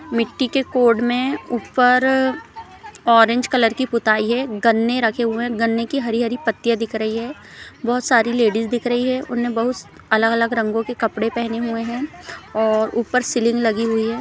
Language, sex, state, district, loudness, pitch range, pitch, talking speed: Hindi, female, Chhattisgarh, Rajnandgaon, -19 LUFS, 230-250 Hz, 235 Hz, 190 wpm